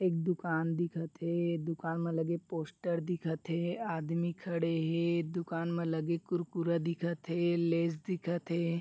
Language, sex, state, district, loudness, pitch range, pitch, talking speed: Chhattisgarhi, male, Chhattisgarh, Bilaspur, -34 LUFS, 165-170 Hz, 170 Hz, 150 wpm